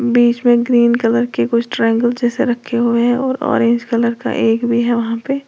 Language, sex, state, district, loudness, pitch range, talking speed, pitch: Hindi, female, Uttar Pradesh, Lalitpur, -15 LUFS, 235-245 Hz, 220 wpm, 235 Hz